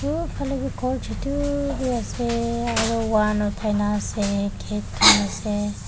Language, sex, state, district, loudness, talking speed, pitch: Nagamese, female, Nagaland, Dimapur, -22 LUFS, 145 wpm, 215 Hz